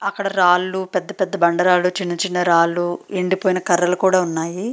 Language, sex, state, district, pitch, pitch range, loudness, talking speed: Telugu, female, Andhra Pradesh, Srikakulam, 180 Hz, 175-190 Hz, -18 LUFS, 150 wpm